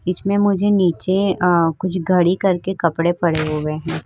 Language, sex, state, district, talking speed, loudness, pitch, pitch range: Hindi, female, Uttar Pradesh, Budaun, 160 wpm, -18 LUFS, 180 Hz, 165-190 Hz